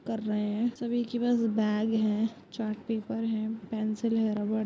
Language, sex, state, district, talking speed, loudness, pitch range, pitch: Hindi, female, Bihar, Purnia, 180 wpm, -30 LUFS, 215-230 Hz, 220 Hz